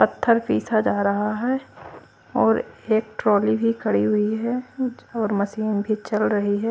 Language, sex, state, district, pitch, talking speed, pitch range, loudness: Hindi, female, Haryana, Charkhi Dadri, 215 Hz, 160 wpm, 210-230 Hz, -22 LUFS